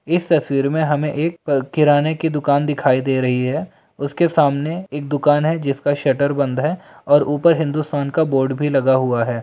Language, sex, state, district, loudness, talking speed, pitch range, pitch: Hindi, male, Bihar, Jamui, -18 LUFS, 195 wpm, 140-155 Hz, 145 Hz